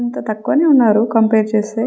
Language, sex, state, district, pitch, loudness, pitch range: Telugu, female, Telangana, Nalgonda, 225 Hz, -14 LUFS, 215-240 Hz